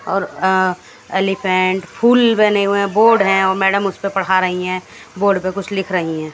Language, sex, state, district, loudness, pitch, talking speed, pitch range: Hindi, female, Haryana, Jhajjar, -16 LUFS, 195 Hz, 200 wpm, 185-200 Hz